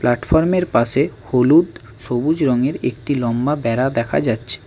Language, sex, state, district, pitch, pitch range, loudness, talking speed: Bengali, male, West Bengal, Alipurduar, 125 Hz, 120-150 Hz, -17 LUFS, 130 wpm